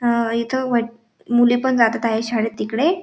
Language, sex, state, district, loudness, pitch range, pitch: Marathi, female, Maharashtra, Dhule, -19 LUFS, 230-245 Hz, 235 Hz